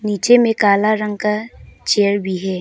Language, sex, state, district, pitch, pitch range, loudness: Hindi, female, Arunachal Pradesh, Papum Pare, 210 Hz, 200-215 Hz, -16 LUFS